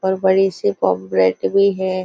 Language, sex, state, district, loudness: Hindi, female, Maharashtra, Nagpur, -17 LUFS